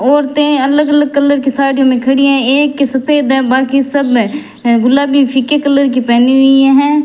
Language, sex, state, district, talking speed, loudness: Hindi, male, Rajasthan, Bikaner, 185 wpm, -10 LUFS